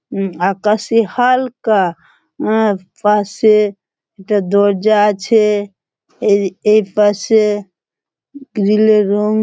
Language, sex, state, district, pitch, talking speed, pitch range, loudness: Bengali, female, West Bengal, Malda, 210 Hz, 100 wpm, 200-215 Hz, -14 LUFS